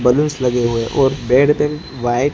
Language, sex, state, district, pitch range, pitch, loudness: Hindi, male, Gujarat, Gandhinagar, 120-145 Hz, 130 Hz, -16 LUFS